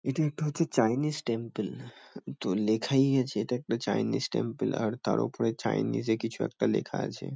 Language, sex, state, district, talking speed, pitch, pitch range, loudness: Bengali, male, West Bengal, Kolkata, 185 wpm, 115 Hz, 110-135 Hz, -30 LUFS